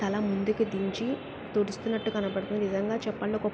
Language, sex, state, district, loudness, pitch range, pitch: Telugu, female, Andhra Pradesh, Krishna, -30 LUFS, 200-220 Hz, 210 Hz